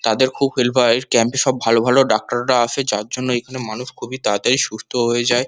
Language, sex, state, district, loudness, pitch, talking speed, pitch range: Bengali, male, West Bengal, Kolkata, -18 LUFS, 120 Hz, 195 wpm, 115-130 Hz